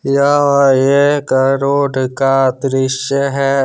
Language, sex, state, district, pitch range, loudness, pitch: Hindi, male, Jharkhand, Deoghar, 135-140 Hz, -13 LUFS, 135 Hz